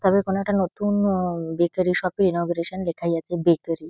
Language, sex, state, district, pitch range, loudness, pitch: Bengali, female, West Bengal, Kolkata, 170-190 Hz, -23 LUFS, 180 Hz